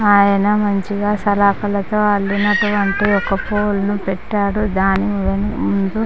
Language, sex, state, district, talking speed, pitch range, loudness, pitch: Telugu, female, Andhra Pradesh, Chittoor, 90 wpm, 200-210 Hz, -17 LUFS, 205 Hz